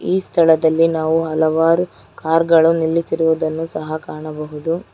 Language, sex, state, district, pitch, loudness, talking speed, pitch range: Kannada, female, Karnataka, Bangalore, 160 Hz, -17 LUFS, 110 wpm, 160-165 Hz